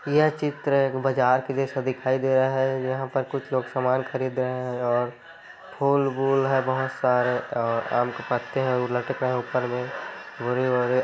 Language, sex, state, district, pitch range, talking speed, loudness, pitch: Hindi, male, Chhattisgarh, Korba, 125-135 Hz, 190 wpm, -25 LUFS, 130 Hz